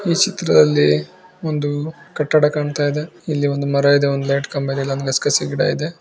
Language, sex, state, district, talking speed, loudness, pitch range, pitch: Kannada, female, Karnataka, Bijapur, 180 wpm, -18 LUFS, 140-155 Hz, 145 Hz